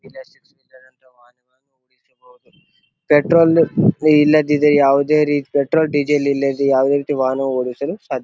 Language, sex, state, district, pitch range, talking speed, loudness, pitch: Kannada, male, Karnataka, Bijapur, 135-155 Hz, 85 wpm, -16 LUFS, 145 Hz